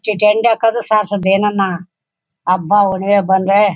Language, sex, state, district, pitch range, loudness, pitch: Kannada, female, Karnataka, Bellary, 185-210 Hz, -14 LUFS, 200 Hz